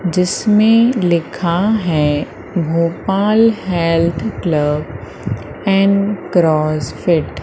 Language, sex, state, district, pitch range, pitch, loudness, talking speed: Hindi, female, Madhya Pradesh, Umaria, 165-200 Hz, 175 Hz, -15 LUFS, 75 wpm